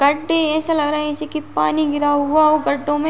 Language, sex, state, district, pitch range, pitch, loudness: Hindi, female, Uttar Pradesh, Muzaffarnagar, 290-310 Hz, 300 Hz, -18 LUFS